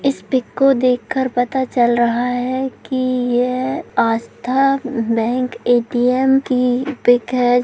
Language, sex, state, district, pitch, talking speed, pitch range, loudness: Hindi, female, Bihar, Gopalganj, 250 Hz, 125 wpm, 245-260 Hz, -17 LUFS